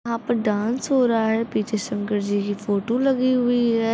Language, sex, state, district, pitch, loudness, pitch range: Hindi, female, Uttar Pradesh, Gorakhpur, 225 Hz, -22 LUFS, 210-245 Hz